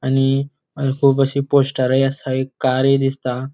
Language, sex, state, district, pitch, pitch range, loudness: Konkani, male, Goa, North and South Goa, 135 Hz, 130-140 Hz, -18 LUFS